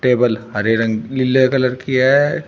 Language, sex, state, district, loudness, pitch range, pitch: Hindi, male, Uttar Pradesh, Shamli, -16 LUFS, 115-130 Hz, 125 Hz